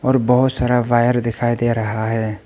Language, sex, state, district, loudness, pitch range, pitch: Hindi, male, Arunachal Pradesh, Papum Pare, -17 LUFS, 115-125 Hz, 120 Hz